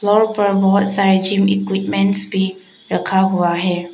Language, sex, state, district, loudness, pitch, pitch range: Hindi, female, Arunachal Pradesh, Papum Pare, -16 LUFS, 195 Hz, 190-195 Hz